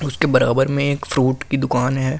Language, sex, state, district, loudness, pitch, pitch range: Hindi, male, Delhi, New Delhi, -18 LUFS, 135 Hz, 130-140 Hz